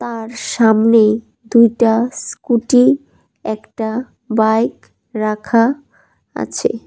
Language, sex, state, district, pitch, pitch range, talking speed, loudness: Bengali, female, Tripura, West Tripura, 230 Hz, 220-240 Hz, 70 wpm, -16 LUFS